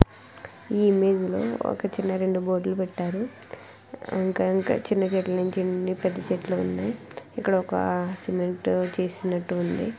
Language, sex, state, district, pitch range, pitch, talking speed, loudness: Telugu, female, Andhra Pradesh, Krishna, 180-195 Hz, 185 Hz, 85 wpm, -26 LUFS